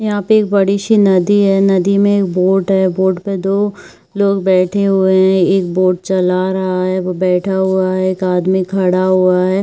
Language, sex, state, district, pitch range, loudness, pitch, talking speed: Hindi, female, Chhattisgarh, Bilaspur, 185-195 Hz, -13 LUFS, 190 Hz, 210 wpm